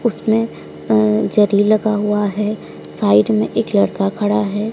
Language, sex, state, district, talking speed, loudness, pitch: Hindi, female, Odisha, Sambalpur, 150 wpm, -16 LUFS, 205 Hz